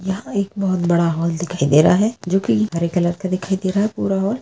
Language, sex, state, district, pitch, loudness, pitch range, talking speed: Hindi, female, Bihar, Araria, 190 Hz, -19 LUFS, 175-200 Hz, 270 wpm